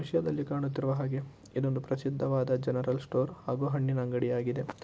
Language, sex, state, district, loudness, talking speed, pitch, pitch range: Kannada, male, Karnataka, Shimoga, -32 LUFS, 135 wpm, 135 Hz, 125-140 Hz